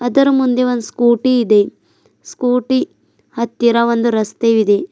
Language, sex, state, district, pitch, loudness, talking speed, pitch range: Kannada, female, Karnataka, Bidar, 240 Hz, -15 LUFS, 110 wpm, 230-255 Hz